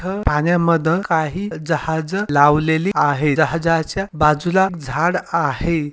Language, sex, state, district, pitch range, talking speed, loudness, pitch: Marathi, male, Maharashtra, Sindhudurg, 150-175 Hz, 100 wpm, -18 LUFS, 165 Hz